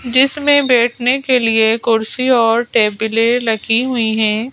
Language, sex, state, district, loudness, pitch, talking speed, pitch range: Hindi, female, Madhya Pradesh, Bhopal, -14 LUFS, 235 Hz, 130 wpm, 225-255 Hz